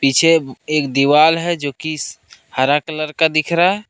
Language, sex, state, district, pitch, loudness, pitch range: Hindi, male, Jharkhand, Ranchi, 155 Hz, -16 LUFS, 140-165 Hz